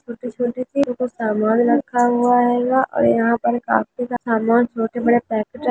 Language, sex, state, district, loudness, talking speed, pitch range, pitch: Hindi, female, Andhra Pradesh, Chittoor, -19 LUFS, 190 wpm, 225-245 Hz, 240 Hz